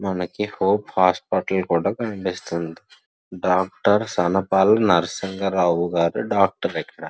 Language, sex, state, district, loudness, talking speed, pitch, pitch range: Telugu, male, Andhra Pradesh, Srikakulam, -21 LUFS, 95 wpm, 95 Hz, 85-100 Hz